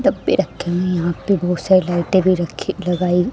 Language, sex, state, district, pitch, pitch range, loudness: Hindi, female, Haryana, Jhajjar, 180 Hz, 175-185 Hz, -18 LUFS